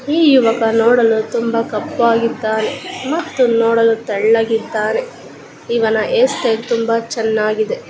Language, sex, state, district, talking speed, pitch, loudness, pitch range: Kannada, male, Karnataka, Dakshina Kannada, 90 wpm, 230 Hz, -15 LUFS, 220-235 Hz